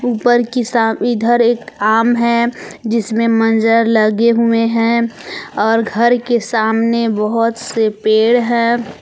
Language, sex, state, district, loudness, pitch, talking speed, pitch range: Hindi, female, Jharkhand, Palamu, -14 LUFS, 230 Hz, 125 wpm, 225-235 Hz